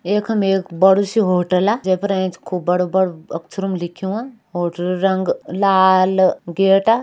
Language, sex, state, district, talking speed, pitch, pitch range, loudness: Hindi, male, Uttarakhand, Uttarkashi, 170 wpm, 190 Hz, 180-195 Hz, -17 LUFS